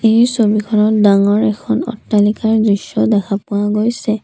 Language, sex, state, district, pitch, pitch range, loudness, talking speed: Assamese, female, Assam, Kamrup Metropolitan, 210 Hz, 205-220 Hz, -14 LUFS, 125 wpm